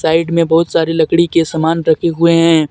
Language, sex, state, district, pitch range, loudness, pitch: Hindi, male, Jharkhand, Deoghar, 160-170 Hz, -13 LUFS, 165 Hz